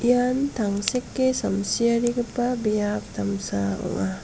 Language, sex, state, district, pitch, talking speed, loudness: Garo, female, Meghalaya, South Garo Hills, 235 Hz, 85 wpm, -24 LUFS